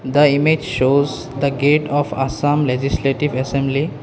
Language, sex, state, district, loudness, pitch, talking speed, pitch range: English, male, Assam, Kamrup Metropolitan, -17 LUFS, 140 Hz, 135 wpm, 135-145 Hz